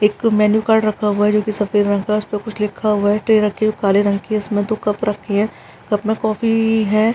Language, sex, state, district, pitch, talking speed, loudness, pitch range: Hindi, female, Bihar, East Champaran, 210 Hz, 285 wpm, -17 LUFS, 205-220 Hz